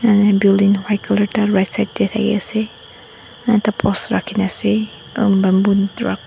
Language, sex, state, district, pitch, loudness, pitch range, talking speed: Nagamese, female, Nagaland, Dimapur, 205 Hz, -17 LUFS, 200-215 Hz, 170 wpm